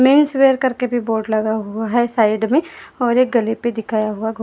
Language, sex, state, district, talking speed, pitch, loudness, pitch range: Hindi, female, Maharashtra, Gondia, 245 wpm, 235 Hz, -17 LUFS, 220-255 Hz